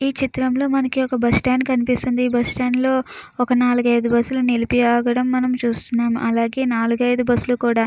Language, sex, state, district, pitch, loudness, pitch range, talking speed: Telugu, female, Andhra Pradesh, Chittoor, 245 Hz, -19 LUFS, 240-255 Hz, 185 wpm